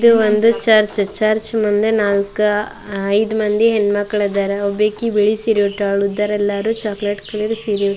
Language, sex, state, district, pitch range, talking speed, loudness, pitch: Kannada, female, Karnataka, Dharwad, 205-220 Hz, 165 wpm, -17 LUFS, 210 Hz